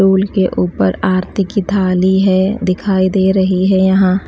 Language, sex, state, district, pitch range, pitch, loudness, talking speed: Hindi, female, Delhi, New Delhi, 185-195 Hz, 190 Hz, -13 LUFS, 180 wpm